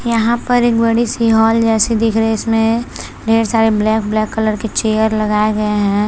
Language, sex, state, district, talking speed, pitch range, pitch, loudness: Hindi, female, Maharashtra, Chandrapur, 205 wpm, 215-230 Hz, 225 Hz, -14 LUFS